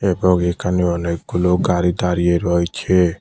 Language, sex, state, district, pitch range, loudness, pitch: Bengali, male, Tripura, West Tripura, 85-90 Hz, -18 LUFS, 90 Hz